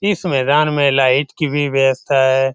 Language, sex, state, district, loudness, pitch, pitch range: Hindi, male, Bihar, Lakhisarai, -15 LUFS, 140 Hz, 135-150 Hz